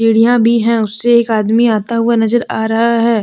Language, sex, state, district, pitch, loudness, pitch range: Hindi, female, Jharkhand, Deoghar, 230 Hz, -12 LUFS, 225-235 Hz